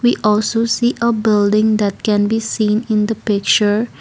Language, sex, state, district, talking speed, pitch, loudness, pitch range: English, female, Assam, Kamrup Metropolitan, 180 wpm, 215 Hz, -16 LUFS, 210-230 Hz